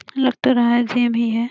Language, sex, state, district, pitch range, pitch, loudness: Hindi, female, Bihar, Jamui, 235-255 Hz, 240 Hz, -18 LUFS